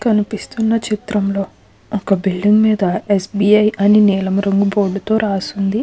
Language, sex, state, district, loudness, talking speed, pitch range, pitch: Telugu, female, Andhra Pradesh, Krishna, -16 LUFS, 135 wpm, 195-215 Hz, 205 Hz